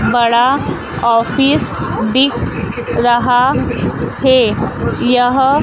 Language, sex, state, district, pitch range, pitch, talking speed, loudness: Hindi, female, Madhya Pradesh, Dhar, 240-265 Hz, 250 Hz, 65 wpm, -14 LUFS